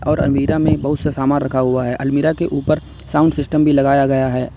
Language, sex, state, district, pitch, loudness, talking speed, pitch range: Hindi, male, Uttar Pradesh, Lalitpur, 145 Hz, -16 LUFS, 235 wpm, 135-150 Hz